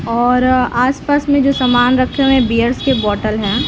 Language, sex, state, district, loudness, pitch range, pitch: Hindi, female, Bihar, Lakhisarai, -14 LUFS, 235-270 Hz, 250 Hz